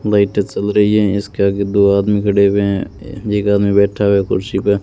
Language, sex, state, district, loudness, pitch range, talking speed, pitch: Hindi, male, Rajasthan, Bikaner, -15 LUFS, 100-105 Hz, 225 wpm, 100 Hz